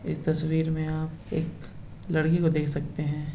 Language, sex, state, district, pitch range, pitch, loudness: Hindi, male, Bihar, Purnia, 150-160 Hz, 155 Hz, -28 LUFS